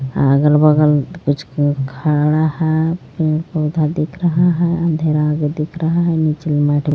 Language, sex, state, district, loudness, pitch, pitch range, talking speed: Hindi, female, Jharkhand, Garhwa, -16 LUFS, 155 Hz, 150-160 Hz, 130 wpm